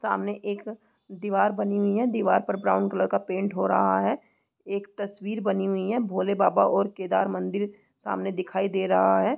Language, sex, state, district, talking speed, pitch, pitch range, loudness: Hindi, female, Uttarakhand, Tehri Garhwal, 190 wpm, 195 Hz, 185-205 Hz, -26 LUFS